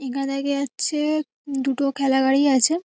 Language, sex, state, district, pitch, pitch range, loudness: Bengali, female, West Bengal, North 24 Parganas, 275 Hz, 270-300 Hz, -22 LUFS